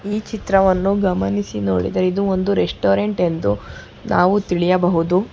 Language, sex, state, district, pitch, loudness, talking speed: Kannada, female, Karnataka, Bangalore, 185 Hz, -18 LUFS, 110 wpm